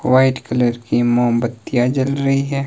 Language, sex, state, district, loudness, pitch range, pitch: Hindi, male, Himachal Pradesh, Shimla, -17 LUFS, 120-135 Hz, 125 Hz